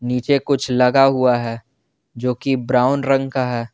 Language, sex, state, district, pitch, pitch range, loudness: Hindi, male, Jharkhand, Garhwa, 125 Hz, 125-135 Hz, -18 LUFS